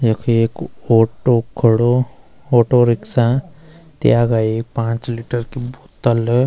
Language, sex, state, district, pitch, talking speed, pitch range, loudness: Garhwali, male, Uttarakhand, Uttarkashi, 120 Hz, 120 wpm, 115-130 Hz, -17 LUFS